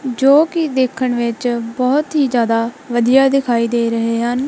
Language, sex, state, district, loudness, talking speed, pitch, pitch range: Punjabi, female, Punjab, Kapurthala, -16 LUFS, 160 wpm, 245 Hz, 235-270 Hz